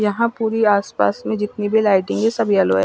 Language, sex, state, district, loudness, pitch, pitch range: Hindi, female, Himachal Pradesh, Shimla, -18 LUFS, 210 Hz, 190-220 Hz